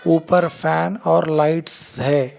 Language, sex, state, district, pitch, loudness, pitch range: Hindi, male, Telangana, Hyderabad, 160 Hz, -16 LUFS, 145-165 Hz